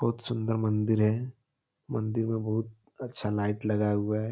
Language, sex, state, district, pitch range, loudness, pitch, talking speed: Hindi, male, Bihar, Darbhanga, 105-115 Hz, -29 LUFS, 110 Hz, 165 wpm